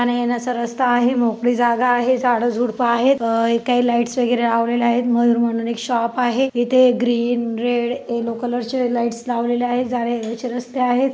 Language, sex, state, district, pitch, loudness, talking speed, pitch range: Marathi, female, Maharashtra, Dhule, 240 Hz, -19 LUFS, 185 wpm, 235-245 Hz